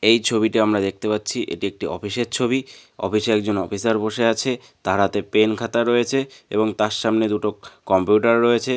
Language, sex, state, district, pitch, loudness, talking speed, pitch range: Bengali, male, West Bengal, North 24 Parganas, 110 Hz, -21 LUFS, 170 wpm, 105-120 Hz